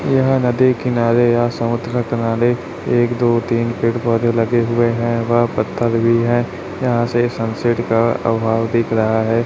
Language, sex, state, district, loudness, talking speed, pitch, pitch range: Hindi, male, Chhattisgarh, Raipur, -17 LUFS, 165 wpm, 120 Hz, 115-120 Hz